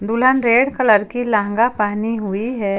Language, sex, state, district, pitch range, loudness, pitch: Hindi, female, Jharkhand, Ranchi, 210-245 Hz, -17 LUFS, 225 Hz